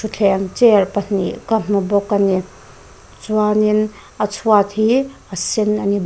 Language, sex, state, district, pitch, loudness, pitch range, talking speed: Mizo, female, Mizoram, Aizawl, 205 Hz, -17 LUFS, 200-215 Hz, 170 wpm